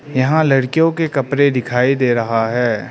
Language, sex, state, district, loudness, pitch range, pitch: Hindi, male, Arunachal Pradesh, Lower Dibang Valley, -16 LUFS, 125-145 Hz, 130 Hz